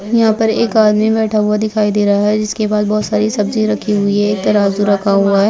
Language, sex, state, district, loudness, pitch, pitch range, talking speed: Hindi, female, Bihar, Jahanabad, -14 LUFS, 210 Hz, 205-215 Hz, 250 wpm